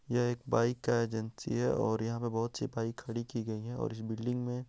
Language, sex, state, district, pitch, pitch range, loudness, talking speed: Hindi, male, Bihar, Araria, 115 Hz, 115-120 Hz, -34 LUFS, 255 wpm